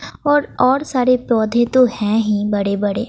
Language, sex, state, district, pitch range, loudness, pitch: Hindi, female, Bihar, West Champaran, 210-255 Hz, -16 LUFS, 240 Hz